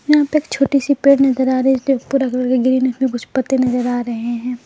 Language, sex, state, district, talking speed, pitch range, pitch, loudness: Hindi, female, Jharkhand, Palamu, 285 wpm, 250-275 Hz, 260 Hz, -16 LUFS